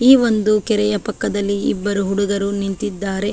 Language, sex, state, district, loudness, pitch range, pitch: Kannada, female, Karnataka, Dakshina Kannada, -18 LUFS, 200-215 Hz, 205 Hz